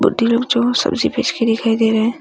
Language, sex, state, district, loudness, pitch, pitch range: Hindi, female, Arunachal Pradesh, Longding, -16 LUFS, 230 Hz, 225-240 Hz